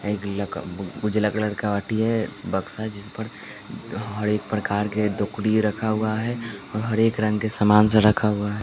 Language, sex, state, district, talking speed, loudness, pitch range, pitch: Hindi, male, Bihar, West Champaran, 190 wpm, -23 LUFS, 105-110 Hz, 105 Hz